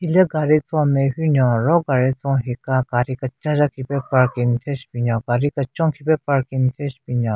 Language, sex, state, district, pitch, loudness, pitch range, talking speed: Rengma, female, Nagaland, Kohima, 135 Hz, -20 LUFS, 125-150 Hz, 195 wpm